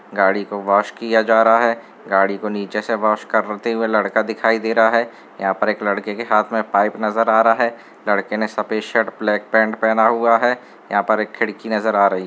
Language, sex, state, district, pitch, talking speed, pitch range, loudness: Hindi, male, Bihar, Gopalganj, 110 Hz, 235 wpm, 105-115 Hz, -18 LUFS